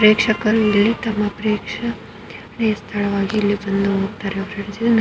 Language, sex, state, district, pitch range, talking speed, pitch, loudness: Kannada, female, Karnataka, Gulbarga, 200-215 Hz, 120 wpm, 210 Hz, -19 LUFS